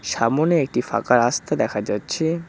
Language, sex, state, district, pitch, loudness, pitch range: Bengali, male, West Bengal, Cooch Behar, 125 Hz, -21 LUFS, 115-160 Hz